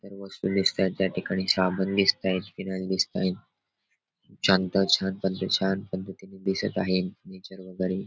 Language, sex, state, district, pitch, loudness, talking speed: Marathi, male, Maharashtra, Dhule, 95 Hz, -26 LUFS, 110 wpm